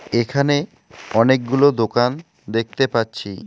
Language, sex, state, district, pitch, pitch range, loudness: Bengali, male, West Bengal, Alipurduar, 120 Hz, 115-140 Hz, -19 LUFS